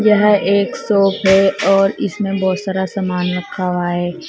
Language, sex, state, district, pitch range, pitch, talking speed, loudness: Hindi, female, Uttar Pradesh, Saharanpur, 185-200 Hz, 195 Hz, 170 wpm, -16 LUFS